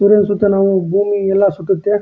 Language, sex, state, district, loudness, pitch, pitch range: Kannada, male, Karnataka, Dharwad, -14 LUFS, 200 Hz, 195-205 Hz